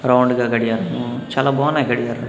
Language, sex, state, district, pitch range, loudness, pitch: Telugu, male, Andhra Pradesh, Annamaya, 120-135 Hz, -18 LUFS, 125 Hz